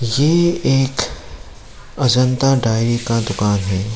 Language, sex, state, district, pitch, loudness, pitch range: Hindi, male, Tripura, Dhalai, 115 Hz, -17 LUFS, 100-135 Hz